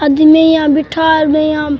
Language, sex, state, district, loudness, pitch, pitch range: Rajasthani, male, Rajasthan, Churu, -10 LUFS, 310 Hz, 300-315 Hz